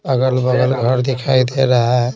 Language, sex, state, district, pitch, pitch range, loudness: Hindi, male, Bihar, Patna, 130 Hz, 125-130 Hz, -15 LUFS